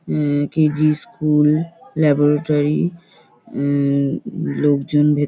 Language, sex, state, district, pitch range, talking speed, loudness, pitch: Bengali, female, West Bengal, North 24 Parganas, 145-155 Hz, 90 wpm, -18 LUFS, 150 Hz